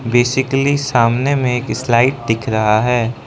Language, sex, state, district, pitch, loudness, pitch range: Hindi, male, Arunachal Pradesh, Lower Dibang Valley, 120 Hz, -15 LUFS, 115-130 Hz